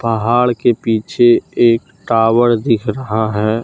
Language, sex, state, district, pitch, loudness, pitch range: Hindi, male, Jharkhand, Deoghar, 115 Hz, -14 LUFS, 110-120 Hz